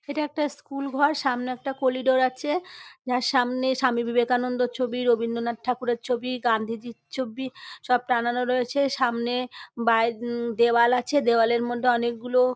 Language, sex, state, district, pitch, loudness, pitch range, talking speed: Bengali, female, West Bengal, North 24 Parganas, 250 Hz, -25 LUFS, 235-260 Hz, 150 wpm